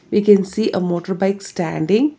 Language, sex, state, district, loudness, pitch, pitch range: English, female, Telangana, Hyderabad, -18 LUFS, 195 Hz, 180-210 Hz